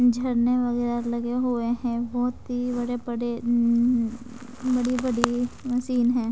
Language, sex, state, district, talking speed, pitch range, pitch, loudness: Hindi, female, Bihar, West Champaran, 135 wpm, 240-245 Hz, 245 Hz, -25 LUFS